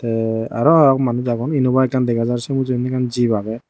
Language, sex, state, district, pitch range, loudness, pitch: Chakma, male, Tripura, Dhalai, 115-130 Hz, -18 LUFS, 125 Hz